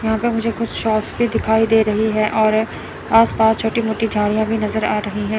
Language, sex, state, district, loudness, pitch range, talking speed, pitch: Hindi, female, Chandigarh, Chandigarh, -17 LUFS, 215-225 Hz, 235 wpm, 220 Hz